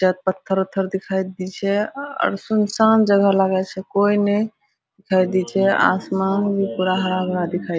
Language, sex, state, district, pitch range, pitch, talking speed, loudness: Hindi, female, Bihar, Araria, 185-205 Hz, 195 Hz, 155 wpm, -20 LUFS